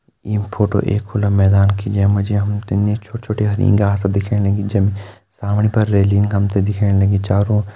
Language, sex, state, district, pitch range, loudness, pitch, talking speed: Hindi, male, Uttarakhand, Uttarkashi, 100-105 Hz, -17 LUFS, 100 Hz, 180 wpm